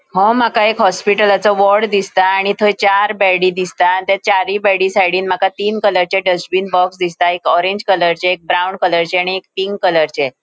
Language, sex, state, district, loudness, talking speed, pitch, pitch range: Konkani, female, Goa, North and South Goa, -14 LUFS, 180 wpm, 190 Hz, 180-200 Hz